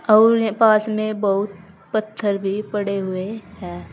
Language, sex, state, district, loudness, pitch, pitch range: Hindi, female, Uttar Pradesh, Saharanpur, -20 LUFS, 210 Hz, 195-215 Hz